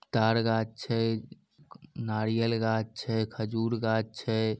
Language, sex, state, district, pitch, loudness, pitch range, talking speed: Maithili, male, Bihar, Samastipur, 115 Hz, -30 LUFS, 110-115 Hz, 115 wpm